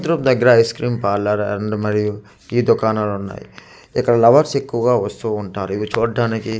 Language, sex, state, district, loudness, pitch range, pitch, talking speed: Telugu, male, Andhra Pradesh, Manyam, -18 LUFS, 105-120 Hz, 110 Hz, 155 wpm